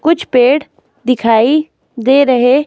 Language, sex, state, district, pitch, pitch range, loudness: Hindi, female, Himachal Pradesh, Shimla, 265 Hz, 245-295 Hz, -12 LUFS